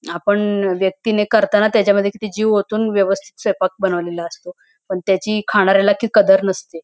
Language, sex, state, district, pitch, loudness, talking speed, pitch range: Marathi, female, Maharashtra, Pune, 200 Hz, -17 LUFS, 160 wpm, 190-215 Hz